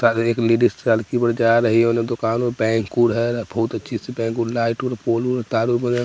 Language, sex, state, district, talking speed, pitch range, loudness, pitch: Hindi, male, Bihar, West Champaran, 130 wpm, 115-120 Hz, -20 LUFS, 115 Hz